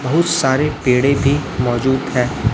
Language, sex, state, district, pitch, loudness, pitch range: Hindi, male, Chhattisgarh, Raipur, 130 Hz, -16 LUFS, 125-145 Hz